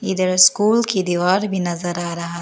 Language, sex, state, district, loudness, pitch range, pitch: Hindi, female, Arunachal Pradesh, Lower Dibang Valley, -17 LUFS, 175-195 Hz, 185 Hz